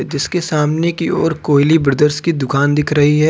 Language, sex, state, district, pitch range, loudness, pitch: Hindi, male, Uttar Pradesh, Lucknow, 145-160 Hz, -15 LUFS, 150 Hz